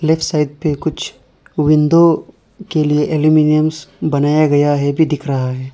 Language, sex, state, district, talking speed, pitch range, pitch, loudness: Hindi, male, Arunachal Pradesh, Lower Dibang Valley, 165 wpm, 145-155 Hz, 150 Hz, -15 LUFS